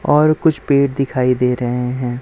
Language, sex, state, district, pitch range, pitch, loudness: Hindi, male, Chhattisgarh, Raipur, 125-145 Hz, 130 Hz, -16 LUFS